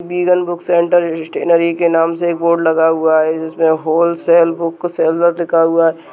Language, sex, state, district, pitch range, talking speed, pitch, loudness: Hindi, male, Uttar Pradesh, Budaun, 165-170 Hz, 185 wpm, 170 Hz, -14 LUFS